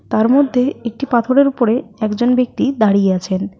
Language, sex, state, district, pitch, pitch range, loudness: Bengali, female, West Bengal, Alipurduar, 240 Hz, 215-260 Hz, -15 LUFS